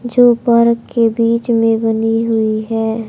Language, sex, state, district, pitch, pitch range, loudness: Hindi, male, Haryana, Charkhi Dadri, 230 Hz, 225-235 Hz, -14 LUFS